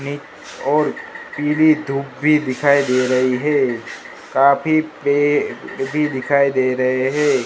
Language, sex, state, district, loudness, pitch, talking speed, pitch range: Hindi, male, Gujarat, Gandhinagar, -18 LUFS, 140 Hz, 120 wpm, 130-150 Hz